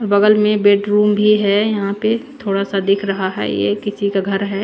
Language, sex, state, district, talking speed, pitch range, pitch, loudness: Hindi, female, Chandigarh, Chandigarh, 220 wpm, 195-210 Hz, 200 Hz, -16 LUFS